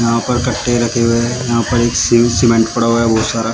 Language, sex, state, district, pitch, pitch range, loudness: Hindi, male, Uttar Pradesh, Shamli, 115 Hz, 115-120 Hz, -14 LUFS